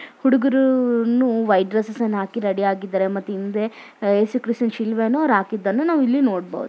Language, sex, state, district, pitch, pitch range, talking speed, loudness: Kannada, female, Karnataka, Mysore, 225 Hz, 200-255 Hz, 45 wpm, -20 LUFS